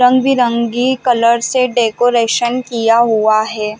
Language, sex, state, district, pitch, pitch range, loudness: Hindi, female, Chhattisgarh, Bilaspur, 235 Hz, 225-250 Hz, -13 LUFS